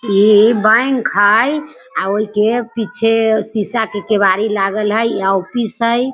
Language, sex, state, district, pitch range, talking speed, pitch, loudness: Hindi, female, Bihar, Sitamarhi, 205-230 Hz, 145 wpm, 220 Hz, -14 LUFS